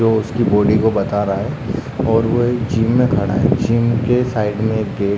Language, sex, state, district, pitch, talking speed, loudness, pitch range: Hindi, male, Uttarakhand, Uttarkashi, 115 Hz, 245 wpm, -17 LUFS, 105-120 Hz